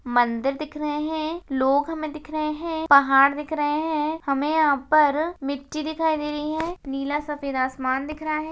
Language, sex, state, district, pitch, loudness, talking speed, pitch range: Hindi, female, Rajasthan, Churu, 300 Hz, -23 LUFS, 190 wpm, 275-310 Hz